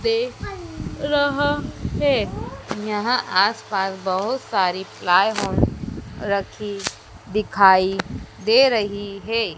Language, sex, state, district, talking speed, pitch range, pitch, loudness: Hindi, female, Madhya Pradesh, Dhar, 80 wpm, 195-250 Hz, 205 Hz, -21 LUFS